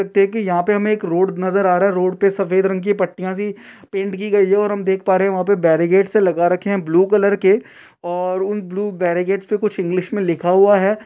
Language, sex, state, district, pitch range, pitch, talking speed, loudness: Hindi, male, Uttar Pradesh, Ghazipur, 185-200 Hz, 195 Hz, 255 wpm, -17 LUFS